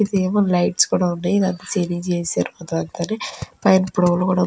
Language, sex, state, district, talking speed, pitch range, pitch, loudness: Telugu, female, Andhra Pradesh, Chittoor, 105 wpm, 175-190 Hz, 180 Hz, -20 LUFS